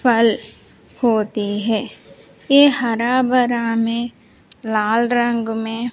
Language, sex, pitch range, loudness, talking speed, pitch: Hindi, female, 225-245 Hz, -18 LUFS, 110 wpm, 230 Hz